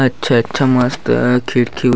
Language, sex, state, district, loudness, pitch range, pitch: Chhattisgarhi, male, Chhattisgarh, Bastar, -15 LUFS, 115-130 Hz, 125 Hz